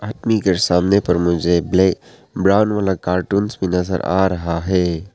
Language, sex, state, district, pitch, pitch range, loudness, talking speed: Hindi, male, Arunachal Pradesh, Papum Pare, 95 Hz, 90-100 Hz, -17 LUFS, 150 wpm